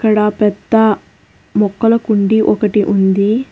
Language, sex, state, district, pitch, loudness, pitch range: Telugu, female, Telangana, Hyderabad, 210 Hz, -13 LUFS, 200-220 Hz